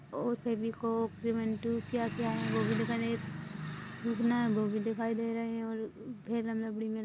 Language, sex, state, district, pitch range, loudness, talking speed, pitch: Hindi, female, Chhattisgarh, Rajnandgaon, 220-230 Hz, -34 LUFS, 120 wpm, 230 Hz